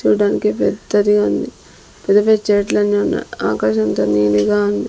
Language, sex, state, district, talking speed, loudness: Telugu, female, Andhra Pradesh, Sri Satya Sai, 125 wpm, -16 LUFS